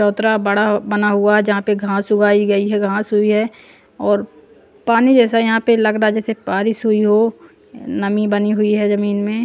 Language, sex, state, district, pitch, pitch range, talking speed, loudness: Hindi, female, Punjab, Pathankot, 210 Hz, 205-220 Hz, 205 wpm, -16 LUFS